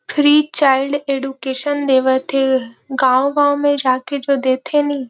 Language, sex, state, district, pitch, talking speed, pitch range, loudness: Chhattisgarhi, female, Chhattisgarh, Rajnandgaon, 275 Hz, 155 wpm, 260-290 Hz, -16 LUFS